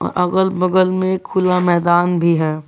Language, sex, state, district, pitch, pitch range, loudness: Hindi, male, Jharkhand, Garhwa, 180 Hz, 175-185 Hz, -16 LUFS